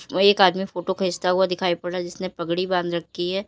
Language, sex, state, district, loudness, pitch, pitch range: Hindi, female, Uttar Pradesh, Lalitpur, -22 LUFS, 180 Hz, 175-190 Hz